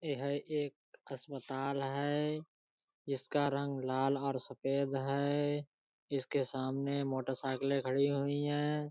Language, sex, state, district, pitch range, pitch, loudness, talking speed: Hindi, male, Uttar Pradesh, Budaun, 135-145 Hz, 140 Hz, -36 LUFS, 115 wpm